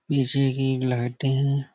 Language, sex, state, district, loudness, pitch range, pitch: Hindi, male, Uttar Pradesh, Budaun, -24 LUFS, 130-140 Hz, 135 Hz